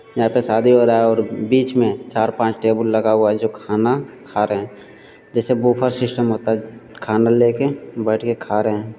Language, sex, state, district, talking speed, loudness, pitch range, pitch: Hindi, male, Bihar, Jamui, 215 wpm, -18 LUFS, 110-120 Hz, 115 Hz